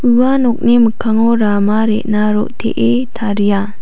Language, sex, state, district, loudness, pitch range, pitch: Garo, female, Meghalaya, South Garo Hills, -13 LUFS, 205-235 Hz, 220 Hz